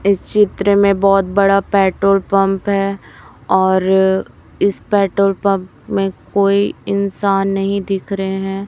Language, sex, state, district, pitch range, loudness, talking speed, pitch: Hindi, female, Chhattisgarh, Raipur, 195-200 Hz, -15 LUFS, 130 wpm, 195 Hz